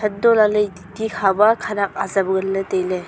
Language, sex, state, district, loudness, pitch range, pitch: Wancho, female, Arunachal Pradesh, Longding, -19 LUFS, 190-210 Hz, 200 Hz